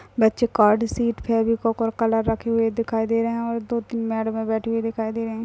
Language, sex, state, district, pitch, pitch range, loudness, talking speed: Hindi, female, Chhattisgarh, Bastar, 225 Hz, 225-230 Hz, -23 LUFS, 230 wpm